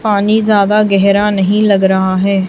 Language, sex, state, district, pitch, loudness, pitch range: Hindi, female, Chhattisgarh, Raipur, 200 Hz, -11 LUFS, 195-210 Hz